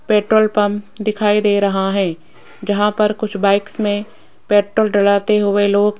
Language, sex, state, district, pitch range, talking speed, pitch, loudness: Hindi, female, Rajasthan, Jaipur, 200-210 Hz, 160 wpm, 205 Hz, -16 LUFS